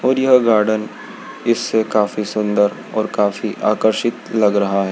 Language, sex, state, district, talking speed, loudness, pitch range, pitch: Hindi, male, Madhya Pradesh, Dhar, 145 wpm, -17 LUFS, 105-115 Hz, 110 Hz